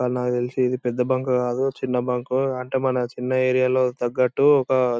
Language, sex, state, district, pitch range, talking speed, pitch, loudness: Telugu, male, Andhra Pradesh, Anantapur, 125-130 Hz, 190 wpm, 125 Hz, -22 LUFS